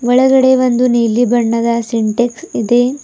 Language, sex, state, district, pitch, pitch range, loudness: Kannada, female, Karnataka, Bidar, 240 Hz, 235-255 Hz, -13 LUFS